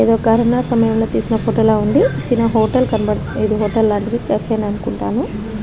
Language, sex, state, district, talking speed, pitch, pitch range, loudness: Telugu, female, Andhra Pradesh, Krishna, 150 wpm, 225 Hz, 215-230 Hz, -16 LUFS